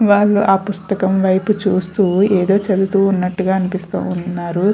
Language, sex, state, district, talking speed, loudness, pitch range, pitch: Telugu, female, Andhra Pradesh, Chittoor, 115 wpm, -16 LUFS, 185-200 Hz, 195 Hz